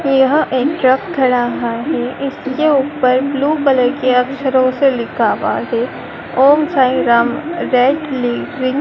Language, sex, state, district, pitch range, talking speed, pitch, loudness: Hindi, female, Madhya Pradesh, Dhar, 250-280 Hz, 145 wpm, 265 Hz, -15 LUFS